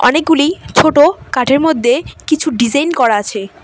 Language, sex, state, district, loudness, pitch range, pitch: Bengali, female, West Bengal, Cooch Behar, -13 LUFS, 240-310 Hz, 285 Hz